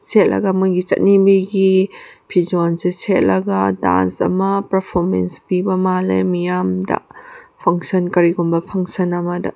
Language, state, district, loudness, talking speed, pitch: Manipuri, Manipur, Imphal West, -17 LUFS, 100 wpm, 175 Hz